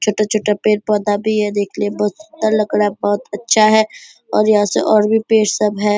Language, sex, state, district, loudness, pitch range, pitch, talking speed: Hindi, female, Bihar, Purnia, -16 LUFS, 205-215 Hz, 210 Hz, 220 wpm